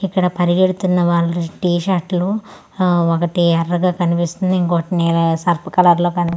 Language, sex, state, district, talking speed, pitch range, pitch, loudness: Telugu, female, Andhra Pradesh, Manyam, 150 wpm, 170-185 Hz, 175 Hz, -16 LUFS